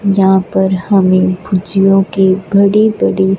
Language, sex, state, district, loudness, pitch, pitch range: Hindi, female, Punjab, Fazilka, -11 LUFS, 190 Hz, 185-195 Hz